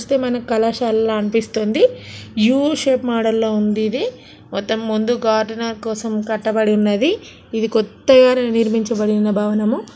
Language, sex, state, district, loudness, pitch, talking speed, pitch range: Telugu, female, Andhra Pradesh, Srikakulam, -18 LUFS, 225 Hz, 120 wpm, 215-245 Hz